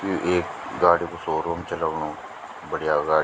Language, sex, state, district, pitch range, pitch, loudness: Garhwali, male, Uttarakhand, Tehri Garhwal, 85-90 Hz, 85 Hz, -24 LUFS